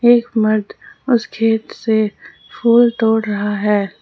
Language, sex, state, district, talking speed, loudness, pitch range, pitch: Hindi, female, Jharkhand, Ranchi, 135 wpm, -16 LUFS, 210-240 Hz, 225 Hz